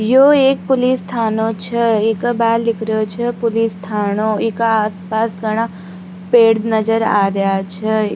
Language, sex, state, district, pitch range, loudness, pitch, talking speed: Rajasthani, female, Rajasthan, Nagaur, 210-230 Hz, -16 LUFS, 220 Hz, 155 wpm